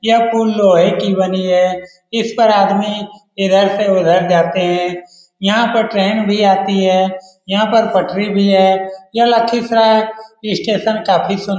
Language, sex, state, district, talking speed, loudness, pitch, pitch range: Hindi, male, Bihar, Lakhisarai, 160 wpm, -14 LUFS, 195 Hz, 185-220 Hz